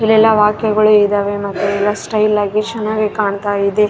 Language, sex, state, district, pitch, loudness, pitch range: Kannada, female, Karnataka, Raichur, 210 Hz, -14 LUFS, 205-215 Hz